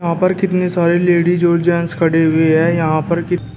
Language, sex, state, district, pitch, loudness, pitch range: Hindi, male, Uttar Pradesh, Shamli, 170 Hz, -14 LUFS, 165-175 Hz